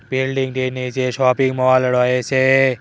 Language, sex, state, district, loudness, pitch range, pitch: Bengali, male, West Bengal, Cooch Behar, -17 LUFS, 125-130 Hz, 130 Hz